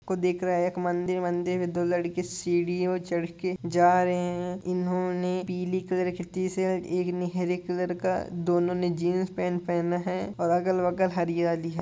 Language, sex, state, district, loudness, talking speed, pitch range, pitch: Hindi, male, Andhra Pradesh, Guntur, -28 LUFS, 150 wpm, 175-180 Hz, 180 Hz